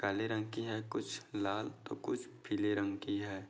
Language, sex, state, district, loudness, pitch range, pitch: Hindi, male, Maharashtra, Dhule, -39 LUFS, 100-110 Hz, 105 Hz